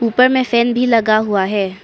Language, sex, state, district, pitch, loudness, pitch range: Hindi, male, Arunachal Pradesh, Papum Pare, 230 Hz, -14 LUFS, 205-245 Hz